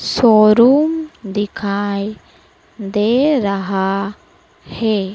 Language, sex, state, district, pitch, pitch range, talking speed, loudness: Hindi, female, Madhya Pradesh, Dhar, 215 Hz, 200-265 Hz, 60 wpm, -16 LUFS